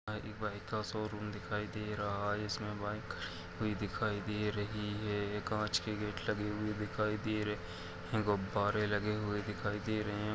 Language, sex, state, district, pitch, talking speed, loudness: Hindi, male, Uttar Pradesh, Etah, 105 Hz, 190 wpm, -38 LUFS